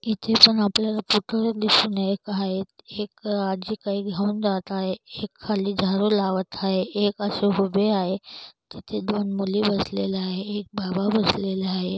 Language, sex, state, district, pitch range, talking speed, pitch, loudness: Marathi, female, Maharashtra, Solapur, 195-210 Hz, 120 wpm, 200 Hz, -23 LUFS